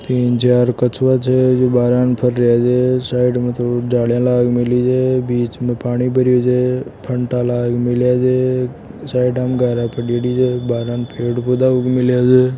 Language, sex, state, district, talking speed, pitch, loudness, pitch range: Marwari, male, Rajasthan, Churu, 180 wpm, 125 Hz, -16 LUFS, 120-125 Hz